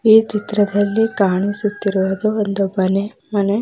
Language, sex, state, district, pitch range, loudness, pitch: Kannada, female, Karnataka, Belgaum, 195-215 Hz, -18 LUFS, 205 Hz